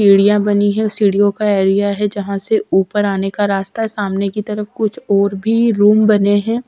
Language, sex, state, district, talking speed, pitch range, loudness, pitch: Hindi, female, Haryana, Rohtak, 205 wpm, 200-210 Hz, -15 LUFS, 205 Hz